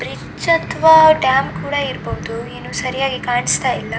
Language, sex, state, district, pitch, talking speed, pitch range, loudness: Kannada, female, Karnataka, Dakshina Kannada, 270 Hz, 120 wpm, 255-320 Hz, -16 LUFS